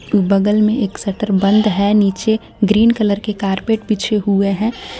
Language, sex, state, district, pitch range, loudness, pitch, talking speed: Hindi, female, Jharkhand, Garhwa, 200-215 Hz, -16 LUFS, 210 Hz, 170 wpm